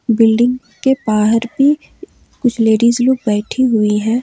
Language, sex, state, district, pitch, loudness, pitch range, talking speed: Hindi, female, Jharkhand, Ranchi, 235 Hz, -14 LUFS, 220-255 Hz, 140 wpm